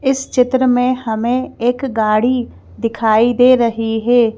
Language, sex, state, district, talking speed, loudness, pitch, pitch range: Hindi, female, Madhya Pradesh, Bhopal, 135 wpm, -15 LUFS, 245 Hz, 225-255 Hz